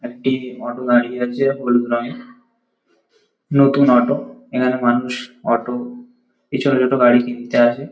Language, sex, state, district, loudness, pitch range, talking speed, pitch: Bengali, male, West Bengal, Kolkata, -17 LUFS, 120-140 Hz, 120 wpm, 125 Hz